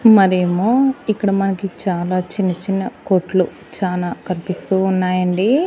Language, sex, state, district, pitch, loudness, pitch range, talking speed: Telugu, female, Andhra Pradesh, Annamaya, 190 Hz, -18 LUFS, 185-195 Hz, 115 wpm